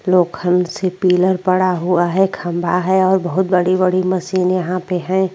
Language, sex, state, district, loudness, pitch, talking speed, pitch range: Hindi, female, Uttar Pradesh, Varanasi, -16 LUFS, 185 Hz, 190 wpm, 180-185 Hz